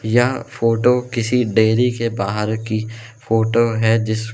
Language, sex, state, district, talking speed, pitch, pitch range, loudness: Hindi, male, Madhya Pradesh, Umaria, 140 wpm, 115 Hz, 110-120 Hz, -18 LUFS